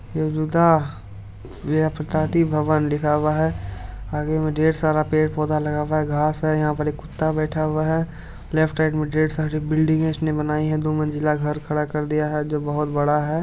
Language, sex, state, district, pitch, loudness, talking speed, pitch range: Hindi, male, Bihar, Supaul, 155 Hz, -22 LUFS, 200 wpm, 150-155 Hz